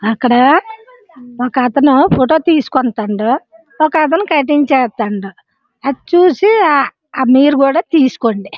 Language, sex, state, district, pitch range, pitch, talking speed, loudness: Telugu, female, Andhra Pradesh, Srikakulam, 245-325 Hz, 275 Hz, 100 wpm, -12 LUFS